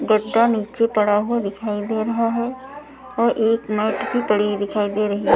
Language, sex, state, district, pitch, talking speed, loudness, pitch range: Hindi, female, Maharashtra, Mumbai Suburban, 220 Hz, 200 wpm, -20 LUFS, 210-235 Hz